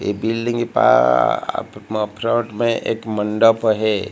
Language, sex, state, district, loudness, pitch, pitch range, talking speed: Hindi, male, Odisha, Malkangiri, -18 LUFS, 110 Hz, 105-115 Hz, 115 wpm